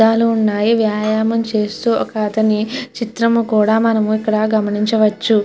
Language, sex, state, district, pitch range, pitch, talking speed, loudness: Telugu, female, Andhra Pradesh, Chittoor, 215-230 Hz, 220 Hz, 120 wpm, -16 LUFS